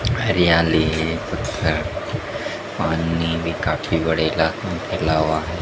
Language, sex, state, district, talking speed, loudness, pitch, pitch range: Hindi, male, Madhya Pradesh, Dhar, 95 wpm, -21 LUFS, 80 Hz, 80-85 Hz